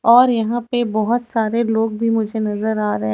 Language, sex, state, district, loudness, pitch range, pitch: Hindi, female, Chhattisgarh, Raipur, -18 LUFS, 220-235 Hz, 225 Hz